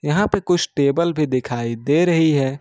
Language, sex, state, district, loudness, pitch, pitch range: Hindi, male, Jharkhand, Ranchi, -19 LUFS, 150 Hz, 135-170 Hz